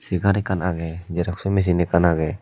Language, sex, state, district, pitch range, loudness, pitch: Chakma, male, Tripura, Dhalai, 85-95 Hz, -21 LUFS, 90 Hz